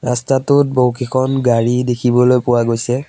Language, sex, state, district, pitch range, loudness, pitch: Assamese, male, Assam, Sonitpur, 120-130 Hz, -15 LUFS, 125 Hz